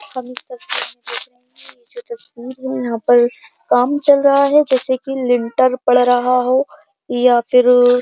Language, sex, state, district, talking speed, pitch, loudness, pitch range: Hindi, female, Uttar Pradesh, Jyotiba Phule Nagar, 120 wpm, 255 Hz, -15 LUFS, 245-275 Hz